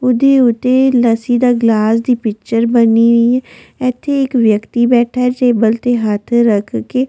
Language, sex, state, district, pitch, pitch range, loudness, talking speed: Punjabi, female, Delhi, New Delhi, 240 Hz, 230-250 Hz, -13 LUFS, 170 wpm